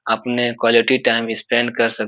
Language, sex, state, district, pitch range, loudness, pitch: Hindi, male, Bihar, Supaul, 115-120 Hz, -17 LUFS, 115 Hz